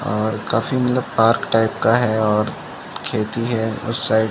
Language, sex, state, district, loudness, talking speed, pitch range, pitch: Hindi, male, Chhattisgarh, Rajnandgaon, -19 LUFS, 180 wpm, 110-115 Hz, 110 Hz